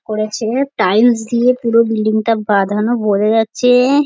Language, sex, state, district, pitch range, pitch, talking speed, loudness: Bengali, female, West Bengal, North 24 Parganas, 215-245 Hz, 225 Hz, 145 wpm, -14 LUFS